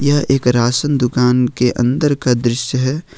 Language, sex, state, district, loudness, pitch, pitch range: Hindi, male, Jharkhand, Ranchi, -15 LUFS, 125 Hz, 125-140 Hz